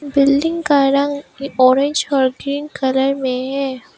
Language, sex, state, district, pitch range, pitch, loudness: Hindi, female, Arunachal Pradesh, Papum Pare, 265-285 Hz, 275 Hz, -17 LUFS